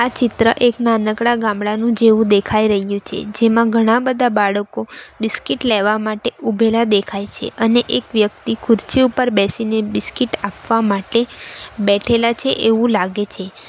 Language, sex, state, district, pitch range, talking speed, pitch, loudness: Gujarati, female, Gujarat, Valsad, 205-235 Hz, 135 wpm, 225 Hz, -16 LUFS